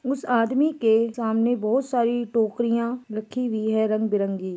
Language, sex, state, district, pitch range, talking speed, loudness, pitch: Hindi, female, Chhattisgarh, Bastar, 220-245 Hz, 155 wpm, -23 LUFS, 230 Hz